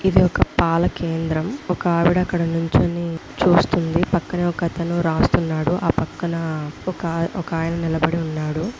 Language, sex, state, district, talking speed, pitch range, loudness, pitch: Telugu, female, Andhra Pradesh, Visakhapatnam, 130 wpm, 165-175 Hz, -21 LUFS, 170 Hz